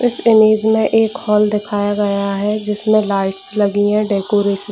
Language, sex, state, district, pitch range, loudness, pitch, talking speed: Hindi, female, Bihar, Jahanabad, 200-215 Hz, -15 LUFS, 210 Hz, 180 wpm